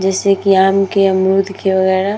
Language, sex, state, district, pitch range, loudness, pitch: Hindi, female, Uttar Pradesh, Muzaffarnagar, 190-195 Hz, -13 LUFS, 195 Hz